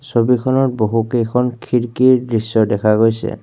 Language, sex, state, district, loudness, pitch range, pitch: Assamese, male, Assam, Kamrup Metropolitan, -16 LUFS, 110-125 Hz, 120 Hz